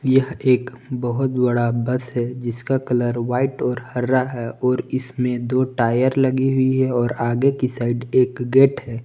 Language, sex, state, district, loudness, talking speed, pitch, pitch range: Hindi, male, Jharkhand, Palamu, -20 LUFS, 170 wpm, 125 Hz, 120-130 Hz